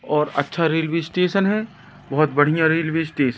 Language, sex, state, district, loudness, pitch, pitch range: Hindi, male, Madhya Pradesh, Katni, -20 LUFS, 160 Hz, 150-170 Hz